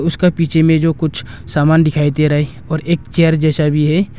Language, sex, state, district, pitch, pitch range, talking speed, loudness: Hindi, male, Arunachal Pradesh, Longding, 160 Hz, 150-165 Hz, 230 wpm, -14 LUFS